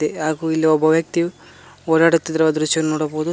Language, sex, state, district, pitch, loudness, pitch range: Kannada, male, Karnataka, Koppal, 160 Hz, -18 LUFS, 155-165 Hz